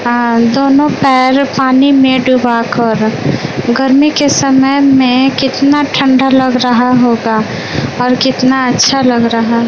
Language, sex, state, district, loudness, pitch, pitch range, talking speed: Hindi, female, Bihar, West Champaran, -10 LUFS, 260 Hz, 240-270 Hz, 130 wpm